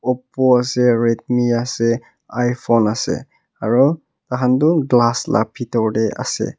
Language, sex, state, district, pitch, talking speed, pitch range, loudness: Nagamese, male, Nagaland, Kohima, 120 Hz, 125 wpm, 115-125 Hz, -18 LUFS